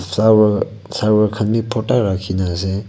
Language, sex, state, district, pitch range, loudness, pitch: Nagamese, male, Nagaland, Kohima, 95-110 Hz, -17 LUFS, 105 Hz